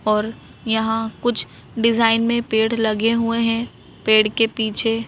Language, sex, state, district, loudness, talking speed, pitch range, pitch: Hindi, female, Madhya Pradesh, Bhopal, -19 LUFS, 140 wpm, 220-230 Hz, 225 Hz